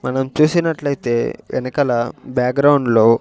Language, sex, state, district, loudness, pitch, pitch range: Telugu, male, Andhra Pradesh, Sri Satya Sai, -17 LUFS, 130 Hz, 120-145 Hz